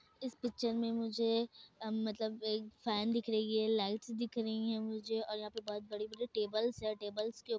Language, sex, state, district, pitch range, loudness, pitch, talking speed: Hindi, female, Bihar, Kishanganj, 215-230 Hz, -38 LUFS, 220 Hz, 190 wpm